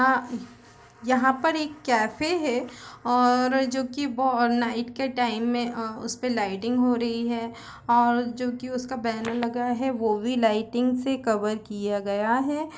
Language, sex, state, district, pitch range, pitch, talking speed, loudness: Hindi, female, Chhattisgarh, Raigarh, 230-255 Hz, 245 Hz, 155 wpm, -25 LUFS